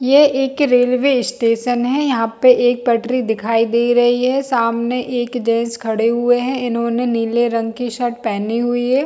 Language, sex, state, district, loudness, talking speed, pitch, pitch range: Hindi, female, Chhattisgarh, Bilaspur, -16 LUFS, 180 wpm, 245 Hz, 230-250 Hz